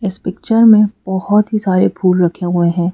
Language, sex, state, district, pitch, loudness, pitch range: Hindi, female, Madhya Pradesh, Bhopal, 190 Hz, -13 LUFS, 180-210 Hz